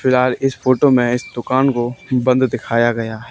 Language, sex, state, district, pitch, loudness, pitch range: Hindi, male, Haryana, Charkhi Dadri, 125 Hz, -17 LUFS, 120-130 Hz